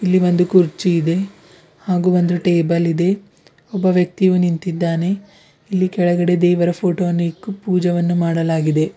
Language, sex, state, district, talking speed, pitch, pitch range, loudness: Kannada, female, Karnataka, Bidar, 120 wpm, 175 Hz, 170-185 Hz, -17 LUFS